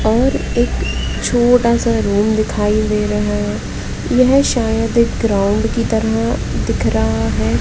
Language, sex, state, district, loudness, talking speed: Hindi, female, Madhya Pradesh, Katni, -16 LUFS, 140 wpm